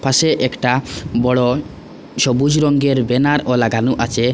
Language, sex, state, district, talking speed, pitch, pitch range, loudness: Bengali, male, Assam, Hailakandi, 110 wpm, 125 Hz, 125-140 Hz, -16 LUFS